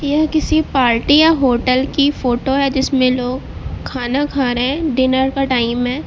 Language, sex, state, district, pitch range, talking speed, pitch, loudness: Hindi, female, Uttar Pradesh, Lucknow, 255-285 Hz, 180 wpm, 265 Hz, -16 LUFS